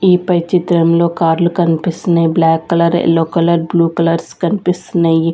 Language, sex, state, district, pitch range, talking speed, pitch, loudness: Telugu, female, Andhra Pradesh, Sri Satya Sai, 165-175 Hz, 135 wpm, 170 Hz, -13 LUFS